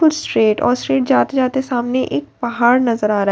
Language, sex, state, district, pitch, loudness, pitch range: Hindi, female, Bihar, Katihar, 235 Hz, -16 LUFS, 200-255 Hz